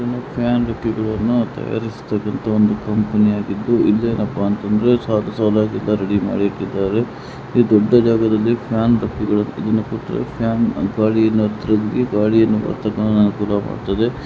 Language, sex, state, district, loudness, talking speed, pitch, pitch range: Kannada, male, Karnataka, Mysore, -18 LUFS, 110 wpm, 110 Hz, 105-115 Hz